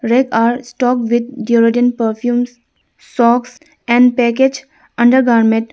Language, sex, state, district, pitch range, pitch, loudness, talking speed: English, female, Arunachal Pradesh, Lower Dibang Valley, 235-250 Hz, 240 Hz, -14 LUFS, 115 wpm